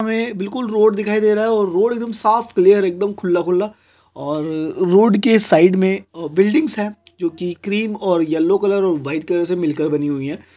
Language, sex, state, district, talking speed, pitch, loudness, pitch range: Hindi, male, Chhattisgarh, Korba, 210 wpm, 195 Hz, -17 LUFS, 170-215 Hz